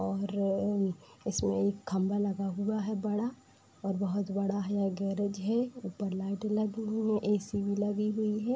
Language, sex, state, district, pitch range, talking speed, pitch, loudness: Hindi, female, Uttar Pradesh, Budaun, 195-210 Hz, 170 wpm, 200 Hz, -32 LUFS